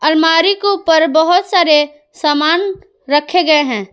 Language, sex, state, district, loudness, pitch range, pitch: Hindi, female, Jharkhand, Palamu, -13 LUFS, 295-360 Hz, 320 Hz